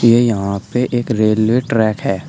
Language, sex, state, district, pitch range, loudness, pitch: Hindi, male, Uttar Pradesh, Shamli, 110-120 Hz, -16 LUFS, 115 Hz